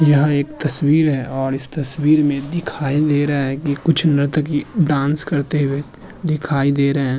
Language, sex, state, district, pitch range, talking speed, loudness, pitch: Hindi, male, Uttar Pradesh, Muzaffarnagar, 140-155 Hz, 185 wpm, -18 LUFS, 145 Hz